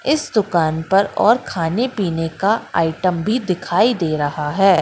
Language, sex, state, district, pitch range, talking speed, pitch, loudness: Hindi, female, Madhya Pradesh, Katni, 165-215 Hz, 160 wpm, 185 Hz, -18 LUFS